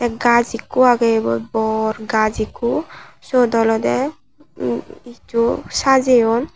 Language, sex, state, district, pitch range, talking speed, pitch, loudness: Chakma, male, Tripura, Unakoti, 220-250 Hz, 110 wpm, 235 Hz, -17 LUFS